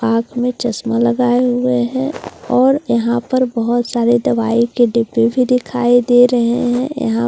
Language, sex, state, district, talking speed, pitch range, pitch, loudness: Hindi, female, Bihar, Katihar, 190 wpm, 235-250 Hz, 240 Hz, -15 LUFS